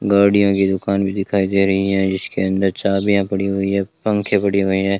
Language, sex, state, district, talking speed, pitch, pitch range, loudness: Hindi, male, Rajasthan, Bikaner, 215 wpm, 100 Hz, 95-100 Hz, -18 LUFS